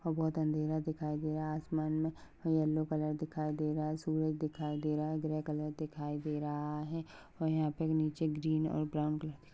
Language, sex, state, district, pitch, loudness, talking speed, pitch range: Hindi, female, Goa, North and South Goa, 155 Hz, -36 LUFS, 225 wpm, 150-155 Hz